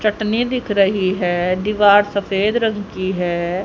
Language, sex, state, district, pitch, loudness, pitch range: Hindi, female, Haryana, Rohtak, 200 Hz, -17 LUFS, 185-210 Hz